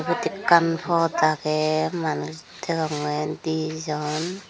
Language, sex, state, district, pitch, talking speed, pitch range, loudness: Chakma, female, Tripura, Dhalai, 155 Hz, 95 wpm, 150-165 Hz, -24 LUFS